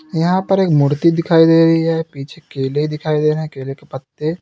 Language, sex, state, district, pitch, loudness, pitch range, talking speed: Hindi, male, Uttar Pradesh, Lalitpur, 155 Hz, -15 LUFS, 145-165 Hz, 230 wpm